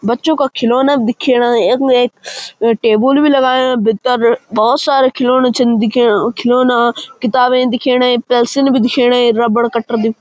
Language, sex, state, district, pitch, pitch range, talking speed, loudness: Garhwali, male, Uttarakhand, Uttarkashi, 245 Hz, 235-255 Hz, 160 wpm, -12 LUFS